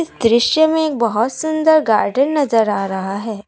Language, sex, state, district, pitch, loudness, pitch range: Hindi, female, Assam, Kamrup Metropolitan, 235 Hz, -16 LUFS, 215-315 Hz